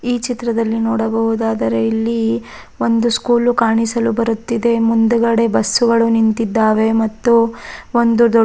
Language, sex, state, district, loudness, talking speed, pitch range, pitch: Kannada, female, Karnataka, Raichur, -15 LUFS, 115 wpm, 225-235 Hz, 230 Hz